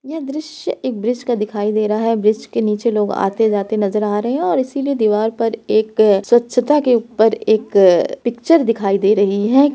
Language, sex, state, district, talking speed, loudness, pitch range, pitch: Hindi, female, Uttar Pradesh, Etah, 195 wpm, -16 LUFS, 210-250 Hz, 225 Hz